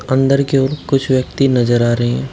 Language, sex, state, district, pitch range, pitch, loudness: Hindi, male, Uttar Pradesh, Shamli, 125-135 Hz, 130 Hz, -15 LUFS